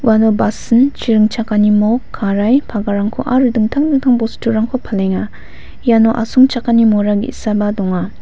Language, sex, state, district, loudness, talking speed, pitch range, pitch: Garo, female, Meghalaya, West Garo Hills, -14 LUFS, 115 wpm, 210-245 Hz, 225 Hz